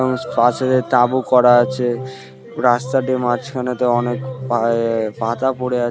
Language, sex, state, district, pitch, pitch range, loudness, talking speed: Bengali, male, West Bengal, Purulia, 125 Hz, 120-130 Hz, -17 LUFS, 130 wpm